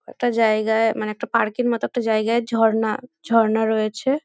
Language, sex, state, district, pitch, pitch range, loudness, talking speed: Bengali, female, West Bengal, North 24 Parganas, 225 Hz, 220-240 Hz, -21 LUFS, 170 wpm